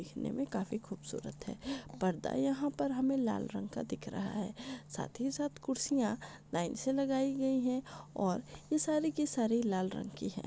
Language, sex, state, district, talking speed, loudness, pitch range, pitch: Hindi, female, Maharashtra, Pune, 190 wpm, -36 LUFS, 215-275 Hz, 260 Hz